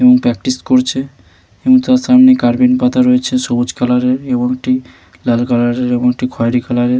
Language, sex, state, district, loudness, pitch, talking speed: Bengali, male, West Bengal, Malda, -13 LUFS, 125 Hz, 180 wpm